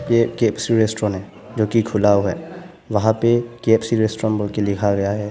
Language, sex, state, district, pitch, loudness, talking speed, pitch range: Hindi, male, Arunachal Pradesh, Papum Pare, 110 Hz, -19 LUFS, 215 wpm, 105-115 Hz